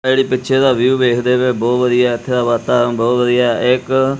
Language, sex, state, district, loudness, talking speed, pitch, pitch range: Punjabi, male, Punjab, Kapurthala, -14 LUFS, 255 wpm, 125 Hz, 120-130 Hz